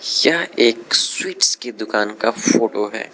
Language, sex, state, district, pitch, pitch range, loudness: Hindi, male, Arunachal Pradesh, Lower Dibang Valley, 110 Hz, 105-115 Hz, -17 LUFS